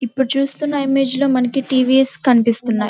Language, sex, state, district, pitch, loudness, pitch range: Telugu, female, Andhra Pradesh, Krishna, 265 Hz, -16 LUFS, 250-275 Hz